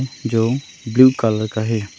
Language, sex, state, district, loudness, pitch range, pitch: Hindi, male, Arunachal Pradesh, Longding, -18 LUFS, 110-130 Hz, 115 Hz